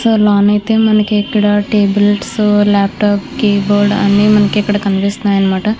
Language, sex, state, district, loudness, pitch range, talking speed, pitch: Telugu, female, Andhra Pradesh, Chittoor, -12 LUFS, 205-210 Hz, 115 wpm, 205 Hz